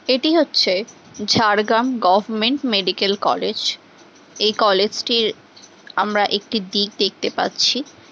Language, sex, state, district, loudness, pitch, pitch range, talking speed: Bengali, female, West Bengal, Jhargram, -18 LUFS, 215 Hz, 200-240 Hz, 110 wpm